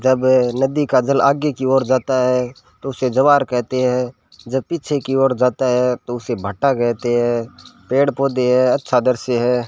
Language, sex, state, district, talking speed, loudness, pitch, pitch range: Hindi, male, Rajasthan, Bikaner, 190 wpm, -17 LUFS, 130 Hz, 125-135 Hz